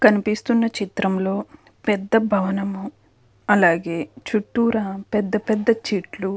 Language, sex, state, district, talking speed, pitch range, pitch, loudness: Telugu, female, Andhra Pradesh, Krishna, 85 wpm, 190-220 Hz, 205 Hz, -21 LUFS